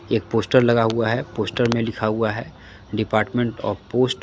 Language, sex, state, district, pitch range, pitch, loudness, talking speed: Hindi, male, Jharkhand, Deoghar, 110-120 Hz, 115 Hz, -21 LUFS, 200 wpm